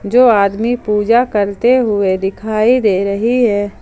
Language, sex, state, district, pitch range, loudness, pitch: Hindi, female, Jharkhand, Ranchi, 200-240 Hz, -13 LUFS, 215 Hz